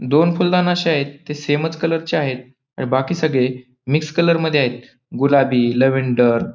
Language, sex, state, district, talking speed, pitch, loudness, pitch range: Marathi, male, Maharashtra, Pune, 165 wpm, 140 Hz, -18 LUFS, 130-160 Hz